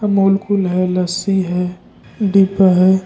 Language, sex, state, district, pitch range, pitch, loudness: Hindi, male, Jharkhand, Ranchi, 180-195 Hz, 190 Hz, -15 LUFS